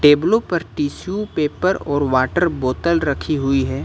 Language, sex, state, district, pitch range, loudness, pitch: Hindi, male, Uttar Pradesh, Lucknow, 140-170 Hz, -19 LUFS, 150 Hz